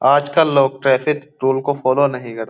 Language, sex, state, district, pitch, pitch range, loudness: Hindi, male, Uttar Pradesh, Jyotiba Phule Nagar, 140 Hz, 130-145 Hz, -17 LUFS